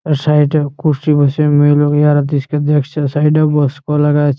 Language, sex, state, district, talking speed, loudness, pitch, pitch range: Bengali, male, West Bengal, Malda, 245 wpm, -13 LUFS, 150 Hz, 145-150 Hz